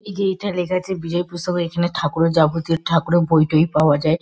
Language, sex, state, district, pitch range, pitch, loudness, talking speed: Bengali, female, West Bengal, Kolkata, 160-180 Hz, 170 Hz, -19 LUFS, 215 wpm